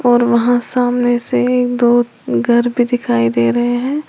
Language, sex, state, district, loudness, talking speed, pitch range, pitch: Hindi, female, Uttar Pradesh, Lalitpur, -14 LUFS, 175 wpm, 240-245 Hz, 240 Hz